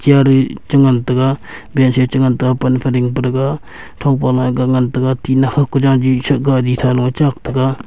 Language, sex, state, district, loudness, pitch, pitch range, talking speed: Wancho, male, Arunachal Pradesh, Longding, -14 LUFS, 130 Hz, 130-135 Hz, 190 wpm